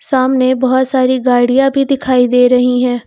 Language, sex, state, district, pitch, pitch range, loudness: Hindi, female, Uttar Pradesh, Lucknow, 255 Hz, 250-265 Hz, -12 LUFS